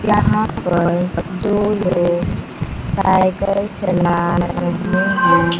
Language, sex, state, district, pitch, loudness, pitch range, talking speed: Hindi, female, Bihar, Kaimur, 175 Hz, -17 LUFS, 175-195 Hz, 85 wpm